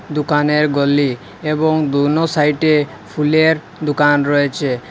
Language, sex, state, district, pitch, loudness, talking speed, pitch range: Bengali, male, Assam, Hailakandi, 150 Hz, -16 LUFS, 100 wpm, 140-155 Hz